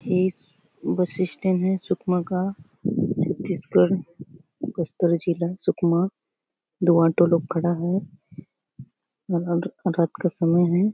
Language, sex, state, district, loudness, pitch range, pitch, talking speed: Hindi, female, Chhattisgarh, Bastar, -23 LUFS, 170-185 Hz, 175 Hz, 110 wpm